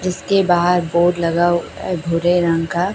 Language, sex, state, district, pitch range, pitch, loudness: Hindi, female, Chhattisgarh, Raipur, 170-180 Hz, 175 Hz, -17 LUFS